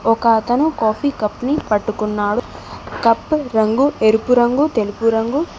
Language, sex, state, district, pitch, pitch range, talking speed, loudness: Telugu, female, Telangana, Mahabubabad, 230 Hz, 220-280 Hz, 130 wpm, -17 LUFS